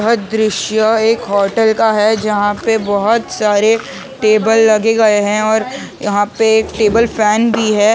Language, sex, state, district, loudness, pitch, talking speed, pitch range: Hindi, male, Maharashtra, Mumbai Suburban, -13 LUFS, 220 Hz, 165 wpm, 210-225 Hz